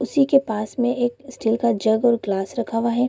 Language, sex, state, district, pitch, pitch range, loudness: Hindi, female, Bihar, Bhagalpur, 235 Hz, 220-250 Hz, -21 LUFS